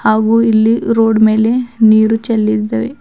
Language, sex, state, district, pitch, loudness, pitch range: Kannada, female, Karnataka, Bidar, 220 Hz, -12 LUFS, 215-230 Hz